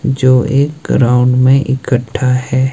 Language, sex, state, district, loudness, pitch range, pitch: Hindi, male, Himachal Pradesh, Shimla, -12 LUFS, 125-135 Hz, 130 Hz